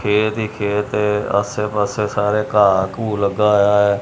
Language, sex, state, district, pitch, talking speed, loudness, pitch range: Punjabi, male, Punjab, Kapurthala, 105 Hz, 150 wpm, -17 LUFS, 100-105 Hz